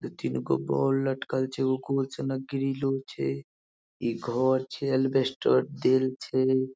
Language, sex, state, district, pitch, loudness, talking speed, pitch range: Maithili, male, Bihar, Madhepura, 130 Hz, -28 LUFS, 135 wpm, 115-135 Hz